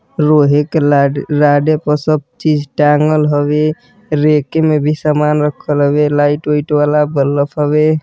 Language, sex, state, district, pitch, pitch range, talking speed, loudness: Bhojpuri, male, Uttar Pradesh, Deoria, 150 Hz, 145-150 Hz, 150 wpm, -13 LUFS